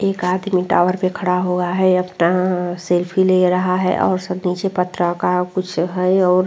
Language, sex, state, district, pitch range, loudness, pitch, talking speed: Hindi, female, Uttar Pradesh, Muzaffarnagar, 180-185 Hz, -18 LUFS, 180 Hz, 195 wpm